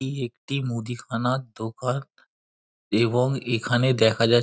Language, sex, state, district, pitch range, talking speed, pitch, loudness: Bengali, male, West Bengal, Dakshin Dinajpur, 115-130 Hz, 120 wpm, 120 Hz, -25 LUFS